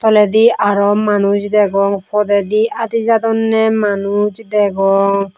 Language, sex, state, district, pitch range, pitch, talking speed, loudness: Chakma, female, Tripura, West Tripura, 200-220 Hz, 210 Hz, 90 wpm, -14 LUFS